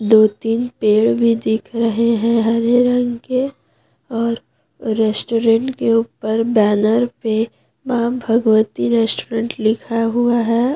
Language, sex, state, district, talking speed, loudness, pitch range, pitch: Hindi, female, Jharkhand, Deoghar, 125 wpm, -17 LUFS, 220-240 Hz, 230 Hz